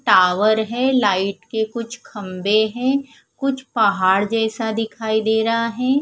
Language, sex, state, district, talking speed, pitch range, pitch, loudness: Hindi, female, Punjab, Fazilka, 140 wpm, 210-245 Hz, 220 Hz, -19 LUFS